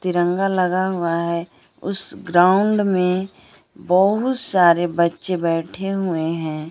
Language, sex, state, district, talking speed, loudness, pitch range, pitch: Hindi, female, Bihar, Kaimur, 115 wpm, -19 LUFS, 170-195 Hz, 180 Hz